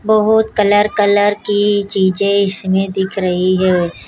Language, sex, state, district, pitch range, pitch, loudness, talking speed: Hindi, female, Maharashtra, Mumbai Suburban, 190-205 Hz, 200 Hz, -14 LUFS, 130 wpm